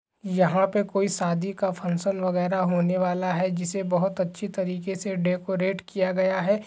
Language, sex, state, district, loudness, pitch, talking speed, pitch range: Hindi, male, Chhattisgarh, Balrampur, -25 LUFS, 185 Hz, 170 wpm, 180-195 Hz